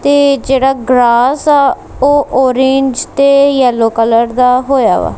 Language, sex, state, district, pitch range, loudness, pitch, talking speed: Punjabi, female, Punjab, Kapurthala, 250-280 Hz, -10 LUFS, 265 Hz, 140 wpm